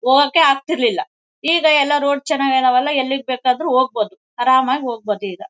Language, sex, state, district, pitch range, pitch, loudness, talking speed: Kannada, female, Karnataka, Bellary, 250-285 Hz, 260 Hz, -17 LUFS, 140 wpm